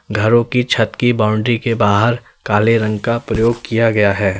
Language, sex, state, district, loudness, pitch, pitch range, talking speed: Hindi, male, Uttar Pradesh, Lalitpur, -15 LUFS, 115 Hz, 105-120 Hz, 190 wpm